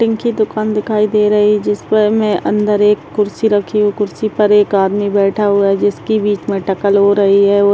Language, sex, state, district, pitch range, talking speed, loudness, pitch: Hindi, female, Bihar, Muzaffarpur, 200-210 Hz, 230 wpm, -13 LUFS, 210 Hz